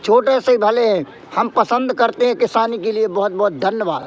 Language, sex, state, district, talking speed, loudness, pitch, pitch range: Hindi, male, Madhya Pradesh, Katni, 190 wpm, -17 LUFS, 230 Hz, 220-245 Hz